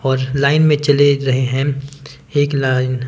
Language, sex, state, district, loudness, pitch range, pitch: Hindi, male, Himachal Pradesh, Shimla, -15 LUFS, 130-145 Hz, 140 Hz